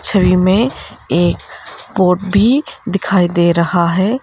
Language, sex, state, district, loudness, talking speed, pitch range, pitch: Hindi, female, Arunachal Pradesh, Lower Dibang Valley, -14 LUFS, 130 wpm, 175-205 Hz, 185 Hz